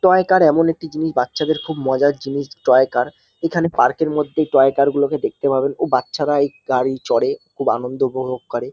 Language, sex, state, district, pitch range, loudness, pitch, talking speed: Bengali, male, West Bengal, North 24 Parganas, 130-160 Hz, -18 LUFS, 140 Hz, 205 wpm